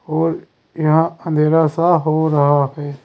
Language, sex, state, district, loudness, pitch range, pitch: Hindi, male, Uttar Pradesh, Saharanpur, -16 LUFS, 145-165 Hz, 155 Hz